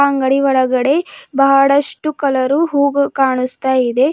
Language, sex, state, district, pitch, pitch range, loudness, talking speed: Kannada, female, Karnataka, Bidar, 275 Hz, 260-280 Hz, -14 LUFS, 85 wpm